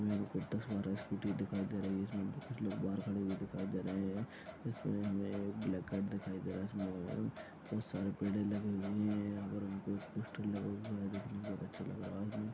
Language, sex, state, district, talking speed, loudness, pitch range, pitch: Hindi, male, Uttarakhand, Uttarkashi, 245 wpm, -41 LUFS, 100-105 Hz, 100 Hz